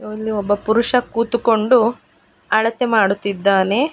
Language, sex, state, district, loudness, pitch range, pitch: Kannada, male, Karnataka, Mysore, -17 LUFS, 205-240 Hz, 220 Hz